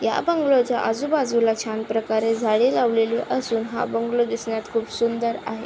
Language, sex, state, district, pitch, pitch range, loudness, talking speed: Marathi, female, Maharashtra, Aurangabad, 230 Hz, 225-245 Hz, -22 LUFS, 150 wpm